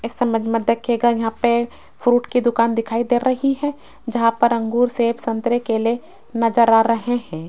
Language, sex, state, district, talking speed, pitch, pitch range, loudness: Hindi, female, Rajasthan, Jaipur, 185 wpm, 235 Hz, 230-245 Hz, -19 LUFS